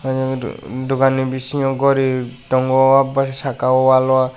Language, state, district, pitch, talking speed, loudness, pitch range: Kokborok, Tripura, West Tripura, 130 Hz, 150 wpm, -17 LUFS, 130-135 Hz